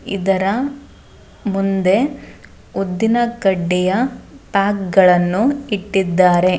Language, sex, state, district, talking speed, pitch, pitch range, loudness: Kannada, female, Karnataka, Dharwad, 45 wpm, 195 Hz, 185-235 Hz, -17 LUFS